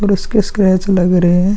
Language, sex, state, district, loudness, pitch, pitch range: Hindi, female, Bihar, Vaishali, -13 LUFS, 195 Hz, 180-205 Hz